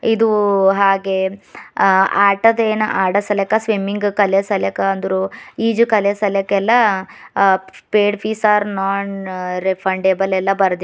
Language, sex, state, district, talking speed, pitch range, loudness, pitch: Kannada, female, Karnataka, Bidar, 105 wpm, 190-210 Hz, -16 LUFS, 200 Hz